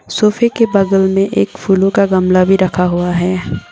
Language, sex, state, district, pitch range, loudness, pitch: Hindi, female, Sikkim, Gangtok, 185-200 Hz, -13 LUFS, 190 Hz